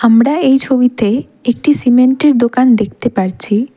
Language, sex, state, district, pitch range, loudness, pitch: Bengali, female, West Bengal, Darjeeling, 230-265 Hz, -12 LUFS, 245 Hz